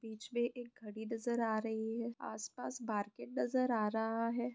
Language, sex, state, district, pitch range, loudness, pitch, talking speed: Hindi, female, Bihar, Jamui, 220-240 Hz, -39 LUFS, 230 Hz, 185 wpm